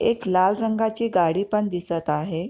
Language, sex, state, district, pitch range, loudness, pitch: Marathi, female, Maharashtra, Pune, 170-220 Hz, -23 LUFS, 190 Hz